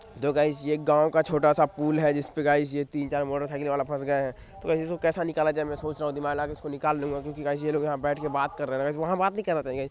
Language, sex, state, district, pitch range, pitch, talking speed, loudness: Hindi, male, Bihar, Madhepura, 145-150 Hz, 150 Hz, 325 wpm, -27 LUFS